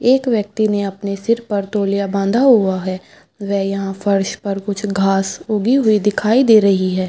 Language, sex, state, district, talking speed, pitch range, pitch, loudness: Hindi, female, Bihar, Madhepura, 185 wpm, 195-215 Hz, 200 Hz, -16 LUFS